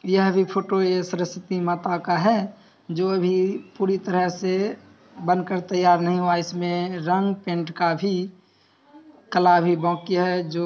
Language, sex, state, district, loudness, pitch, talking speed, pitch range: Hindi, male, Bihar, Samastipur, -23 LUFS, 180 Hz, 170 wpm, 175-190 Hz